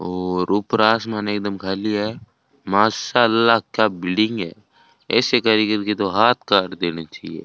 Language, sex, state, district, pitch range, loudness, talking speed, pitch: Hindi, male, Rajasthan, Bikaner, 100-115 Hz, -19 LUFS, 145 wpm, 105 Hz